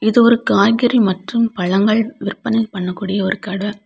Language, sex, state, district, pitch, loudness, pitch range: Tamil, female, Tamil Nadu, Kanyakumari, 210 Hz, -16 LUFS, 195-230 Hz